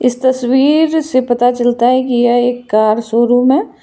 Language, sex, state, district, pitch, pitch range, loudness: Hindi, female, Karnataka, Bangalore, 245 Hz, 240-260 Hz, -12 LUFS